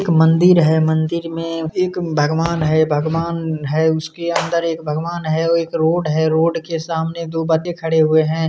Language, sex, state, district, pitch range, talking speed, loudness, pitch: Hindi, male, Bihar, Kishanganj, 160-170 Hz, 165 wpm, -17 LUFS, 165 Hz